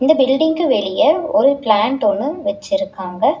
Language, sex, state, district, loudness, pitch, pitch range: Tamil, female, Tamil Nadu, Chennai, -16 LUFS, 295 Hz, 265-310 Hz